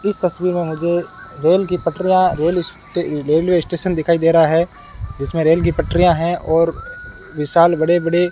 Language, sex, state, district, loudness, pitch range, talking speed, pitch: Hindi, male, Rajasthan, Bikaner, -17 LUFS, 165-180 Hz, 180 wpm, 170 Hz